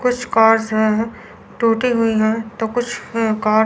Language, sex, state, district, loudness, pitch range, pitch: Hindi, female, Chandigarh, Chandigarh, -17 LUFS, 220-235 Hz, 225 Hz